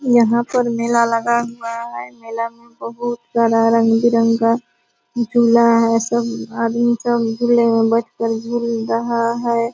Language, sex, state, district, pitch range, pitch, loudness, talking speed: Hindi, female, Bihar, Purnia, 230-235 Hz, 235 Hz, -17 LUFS, 150 wpm